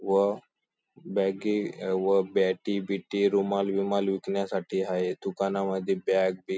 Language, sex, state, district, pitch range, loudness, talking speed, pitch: Marathi, male, Maharashtra, Sindhudurg, 95-100 Hz, -28 LUFS, 110 wpm, 95 Hz